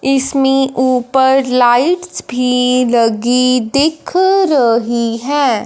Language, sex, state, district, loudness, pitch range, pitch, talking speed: Hindi, female, Punjab, Fazilka, -13 LUFS, 245-280 Hz, 255 Hz, 85 wpm